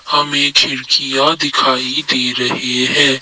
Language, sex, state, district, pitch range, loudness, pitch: Hindi, male, Assam, Kamrup Metropolitan, 125-145 Hz, -13 LUFS, 130 Hz